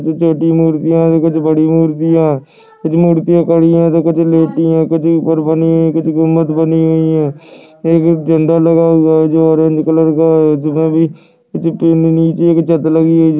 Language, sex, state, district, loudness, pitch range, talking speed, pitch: Hindi, male, Goa, North and South Goa, -11 LUFS, 160-165 Hz, 175 wpm, 160 Hz